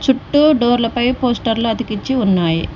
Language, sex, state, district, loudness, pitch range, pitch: Telugu, female, Telangana, Mahabubabad, -16 LUFS, 225-260 Hz, 240 Hz